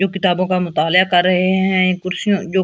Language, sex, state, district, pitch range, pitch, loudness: Hindi, female, Delhi, New Delhi, 180-190 Hz, 185 Hz, -16 LUFS